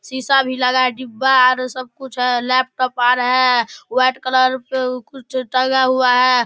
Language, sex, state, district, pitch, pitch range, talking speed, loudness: Maithili, male, Bihar, Darbhanga, 255 Hz, 250-260 Hz, 205 wpm, -16 LUFS